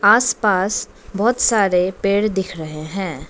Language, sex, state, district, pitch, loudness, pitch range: Hindi, female, Arunachal Pradesh, Lower Dibang Valley, 195 Hz, -18 LUFS, 180-215 Hz